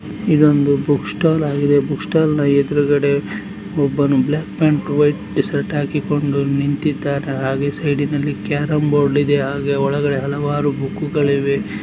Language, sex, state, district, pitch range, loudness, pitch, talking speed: Kannada, male, Karnataka, Dakshina Kannada, 140-150 Hz, -18 LUFS, 145 Hz, 125 wpm